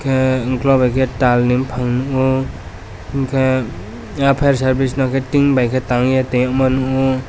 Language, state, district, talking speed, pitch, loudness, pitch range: Kokborok, Tripura, West Tripura, 140 wpm, 130 Hz, -16 LUFS, 125-135 Hz